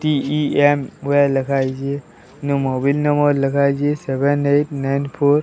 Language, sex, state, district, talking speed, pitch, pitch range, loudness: Odia, male, Odisha, Sambalpur, 145 wpm, 140 Hz, 135-145 Hz, -18 LUFS